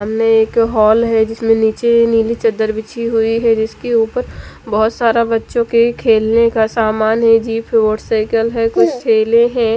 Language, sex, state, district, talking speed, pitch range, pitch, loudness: Hindi, female, Punjab, Fazilka, 170 wpm, 220-230 Hz, 225 Hz, -14 LUFS